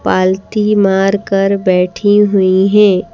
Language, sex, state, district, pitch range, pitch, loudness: Hindi, female, Madhya Pradesh, Bhopal, 185-205 Hz, 195 Hz, -11 LUFS